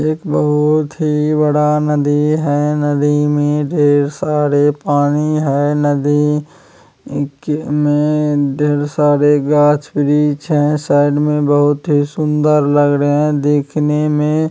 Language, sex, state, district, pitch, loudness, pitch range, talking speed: Hindi, male, Bihar, Kishanganj, 150 Hz, -14 LUFS, 145-150 Hz, 120 wpm